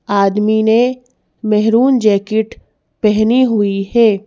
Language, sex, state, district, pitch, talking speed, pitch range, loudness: Hindi, female, Madhya Pradesh, Bhopal, 220 Hz, 100 wpm, 210-235 Hz, -13 LUFS